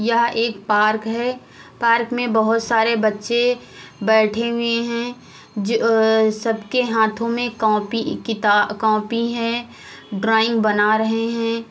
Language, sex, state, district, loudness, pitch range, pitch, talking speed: Hindi, female, Uttar Pradesh, Hamirpur, -19 LUFS, 220-235 Hz, 225 Hz, 130 wpm